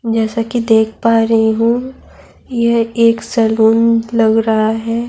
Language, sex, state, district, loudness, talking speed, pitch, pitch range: Urdu, female, Bihar, Saharsa, -13 LUFS, 140 wpm, 230 Hz, 225-230 Hz